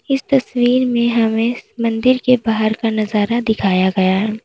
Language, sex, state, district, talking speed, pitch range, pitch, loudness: Hindi, female, Uttar Pradesh, Lalitpur, 160 wpm, 215-245 Hz, 225 Hz, -16 LUFS